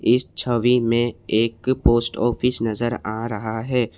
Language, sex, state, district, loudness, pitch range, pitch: Hindi, male, Assam, Kamrup Metropolitan, -21 LUFS, 110-120 Hz, 120 Hz